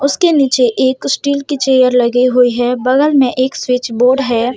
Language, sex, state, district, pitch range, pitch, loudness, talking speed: Hindi, female, Jharkhand, Deoghar, 250-275 Hz, 255 Hz, -12 LUFS, 195 wpm